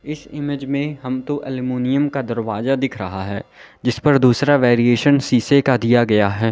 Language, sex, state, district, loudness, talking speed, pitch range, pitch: Hindi, male, Uttar Pradesh, Lalitpur, -18 LUFS, 175 wpm, 120-140 Hz, 130 Hz